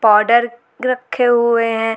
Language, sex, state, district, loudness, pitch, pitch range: Hindi, female, Jharkhand, Garhwa, -15 LUFS, 235 Hz, 225-240 Hz